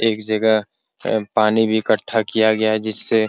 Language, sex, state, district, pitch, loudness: Hindi, male, Bihar, Araria, 110 Hz, -18 LUFS